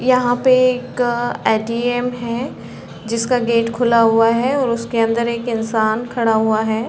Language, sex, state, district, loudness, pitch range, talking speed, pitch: Hindi, female, Chhattisgarh, Balrampur, -17 LUFS, 230-245 Hz, 165 wpm, 235 Hz